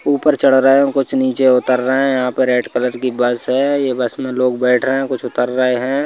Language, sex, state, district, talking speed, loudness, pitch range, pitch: Hindi, male, Madhya Pradesh, Bhopal, 265 wpm, -15 LUFS, 125-135 Hz, 130 Hz